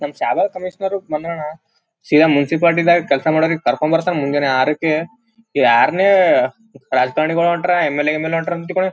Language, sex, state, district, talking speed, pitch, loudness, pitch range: Kannada, male, Karnataka, Gulbarga, 135 wpm, 165 Hz, -16 LUFS, 150-180 Hz